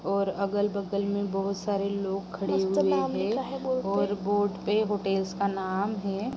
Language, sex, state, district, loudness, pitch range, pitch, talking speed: Hindi, female, Uttar Pradesh, Jalaun, -28 LUFS, 195-205 Hz, 200 Hz, 150 wpm